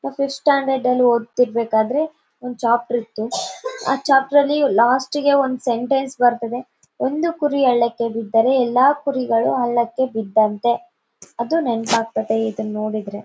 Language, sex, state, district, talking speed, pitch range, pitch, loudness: Kannada, female, Karnataka, Bellary, 125 wpm, 230-275 Hz, 245 Hz, -19 LUFS